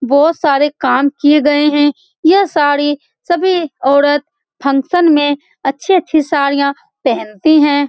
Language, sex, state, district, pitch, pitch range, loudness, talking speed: Hindi, female, Bihar, Saran, 290 Hz, 285-320 Hz, -13 LUFS, 130 wpm